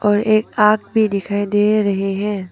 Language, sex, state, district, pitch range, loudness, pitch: Hindi, female, Arunachal Pradesh, Papum Pare, 200-215 Hz, -17 LUFS, 205 Hz